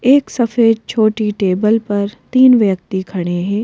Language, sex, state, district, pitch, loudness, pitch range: Hindi, female, Madhya Pradesh, Bhopal, 215 Hz, -14 LUFS, 195-230 Hz